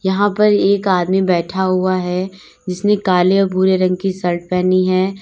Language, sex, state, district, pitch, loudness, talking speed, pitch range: Hindi, female, Uttar Pradesh, Lalitpur, 185 Hz, -16 LUFS, 185 wpm, 180-195 Hz